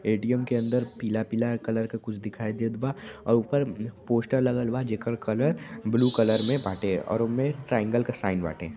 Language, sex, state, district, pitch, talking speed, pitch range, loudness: Bhojpuri, male, Uttar Pradesh, Varanasi, 115 Hz, 185 wpm, 110-125 Hz, -27 LUFS